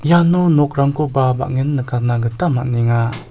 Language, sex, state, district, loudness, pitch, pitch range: Garo, male, Meghalaya, South Garo Hills, -16 LUFS, 135 Hz, 120-150 Hz